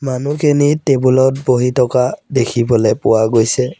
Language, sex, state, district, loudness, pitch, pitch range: Assamese, male, Assam, Sonitpur, -14 LUFS, 130 Hz, 120-140 Hz